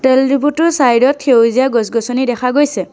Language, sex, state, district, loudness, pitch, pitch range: Assamese, female, Assam, Sonitpur, -13 LUFS, 260 Hz, 235-275 Hz